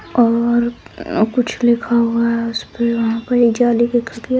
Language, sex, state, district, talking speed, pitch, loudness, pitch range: Hindi, female, Bihar, Saharsa, 175 wpm, 235 Hz, -16 LUFS, 230-240 Hz